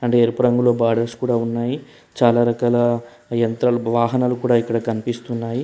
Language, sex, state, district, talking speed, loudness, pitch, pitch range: Telugu, male, Telangana, Hyderabad, 140 wpm, -19 LUFS, 120 Hz, 115-120 Hz